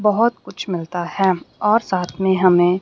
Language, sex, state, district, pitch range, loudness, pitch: Hindi, female, Haryana, Rohtak, 180-210 Hz, -19 LUFS, 190 Hz